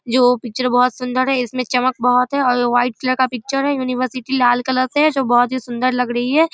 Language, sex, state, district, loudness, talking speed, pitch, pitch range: Hindi, female, Bihar, Darbhanga, -17 LUFS, 265 wpm, 255 Hz, 245-260 Hz